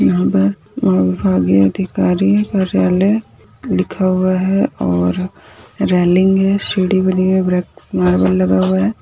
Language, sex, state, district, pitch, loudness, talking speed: Hindi, female, Maharashtra, Chandrapur, 180 Hz, -15 LUFS, 125 wpm